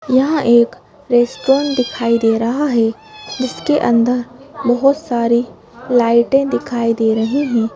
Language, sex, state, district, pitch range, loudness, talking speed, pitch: Hindi, female, Madhya Pradesh, Bhopal, 235-275 Hz, -15 LUFS, 125 wpm, 245 Hz